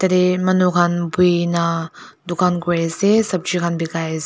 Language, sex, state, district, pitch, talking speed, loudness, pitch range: Nagamese, female, Nagaland, Dimapur, 175 Hz, 155 wpm, -18 LUFS, 170-185 Hz